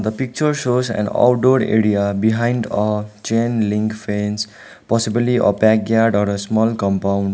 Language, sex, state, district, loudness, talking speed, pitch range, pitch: English, male, Sikkim, Gangtok, -18 LUFS, 140 wpm, 105-115 Hz, 110 Hz